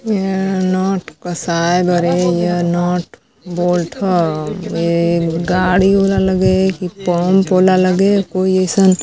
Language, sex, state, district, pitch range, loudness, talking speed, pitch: Chhattisgarhi, female, Chhattisgarh, Balrampur, 175-190 Hz, -15 LUFS, 135 wpm, 185 Hz